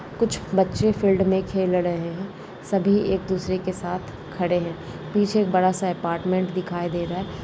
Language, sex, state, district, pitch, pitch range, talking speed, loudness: Hindi, female, Rajasthan, Nagaur, 185 Hz, 175-195 Hz, 185 wpm, -23 LUFS